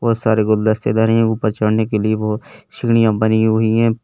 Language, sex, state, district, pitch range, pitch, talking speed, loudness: Hindi, male, Uttar Pradesh, Lalitpur, 110-115 Hz, 110 Hz, 205 wpm, -16 LUFS